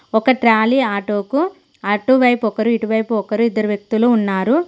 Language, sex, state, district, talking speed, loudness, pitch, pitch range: Telugu, female, Telangana, Mahabubabad, 130 wpm, -16 LUFS, 220 Hz, 210-250 Hz